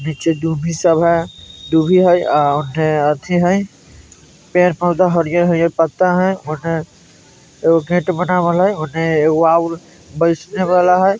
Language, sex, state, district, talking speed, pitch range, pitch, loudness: Bajjika, male, Bihar, Vaishali, 155 wpm, 160-180 Hz, 170 Hz, -15 LUFS